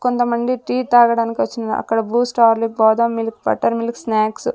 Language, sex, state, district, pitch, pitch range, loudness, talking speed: Telugu, female, Andhra Pradesh, Sri Satya Sai, 230 Hz, 225-240 Hz, -17 LUFS, 170 wpm